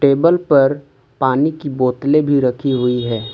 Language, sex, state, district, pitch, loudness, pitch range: Hindi, male, Jharkhand, Ranchi, 140 Hz, -16 LUFS, 125-145 Hz